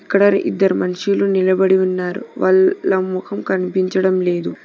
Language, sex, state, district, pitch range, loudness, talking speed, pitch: Telugu, female, Telangana, Hyderabad, 185-200 Hz, -17 LUFS, 130 wpm, 190 Hz